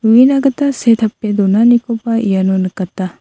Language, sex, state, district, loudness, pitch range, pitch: Garo, female, Meghalaya, South Garo Hills, -13 LUFS, 190-240 Hz, 225 Hz